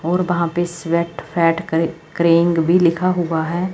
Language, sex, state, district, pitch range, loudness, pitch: Hindi, female, Chandigarh, Chandigarh, 165-175 Hz, -18 LUFS, 170 Hz